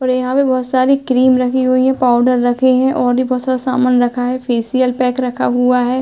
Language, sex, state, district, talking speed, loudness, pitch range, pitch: Hindi, female, Uttar Pradesh, Hamirpur, 240 wpm, -14 LUFS, 250-260 Hz, 255 Hz